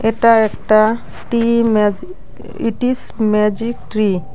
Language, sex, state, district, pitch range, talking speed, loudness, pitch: Bengali, female, West Bengal, Alipurduar, 215-235 Hz, 125 wpm, -16 LUFS, 225 Hz